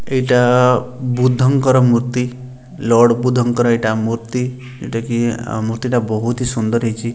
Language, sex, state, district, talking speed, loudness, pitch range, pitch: Odia, male, Odisha, Sambalpur, 125 wpm, -16 LUFS, 115-125 Hz, 125 Hz